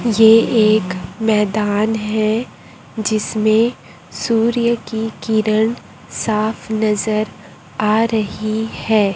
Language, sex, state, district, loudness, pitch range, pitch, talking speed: Hindi, male, Chhattisgarh, Raipur, -17 LUFS, 215-225 Hz, 215 Hz, 85 wpm